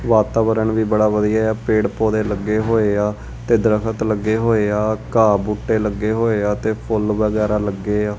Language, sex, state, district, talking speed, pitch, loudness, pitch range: Punjabi, male, Punjab, Kapurthala, 190 wpm, 110 Hz, -18 LUFS, 105-110 Hz